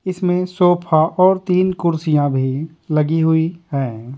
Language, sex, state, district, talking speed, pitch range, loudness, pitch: Hindi, male, Bihar, Patna, 130 wpm, 150-180 Hz, -17 LUFS, 160 Hz